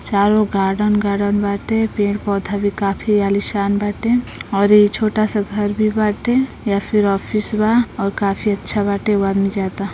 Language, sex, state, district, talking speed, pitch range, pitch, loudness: Bhojpuri, female, Uttar Pradesh, Deoria, 165 wpm, 200-215 Hz, 205 Hz, -17 LUFS